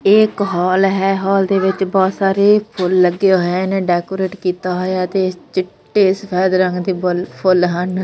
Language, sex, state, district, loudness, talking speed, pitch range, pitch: Punjabi, female, Punjab, Fazilka, -16 LUFS, 180 wpm, 180-195 Hz, 190 Hz